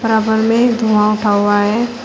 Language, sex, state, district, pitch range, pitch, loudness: Hindi, female, Uttar Pradesh, Shamli, 210-230 Hz, 220 Hz, -14 LUFS